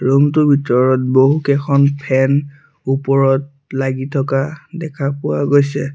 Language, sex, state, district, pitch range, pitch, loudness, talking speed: Assamese, male, Assam, Sonitpur, 135-145 Hz, 140 Hz, -15 LUFS, 110 wpm